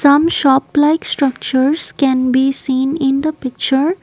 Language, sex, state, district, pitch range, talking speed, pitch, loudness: English, female, Assam, Kamrup Metropolitan, 265-300 Hz, 150 wpm, 275 Hz, -14 LUFS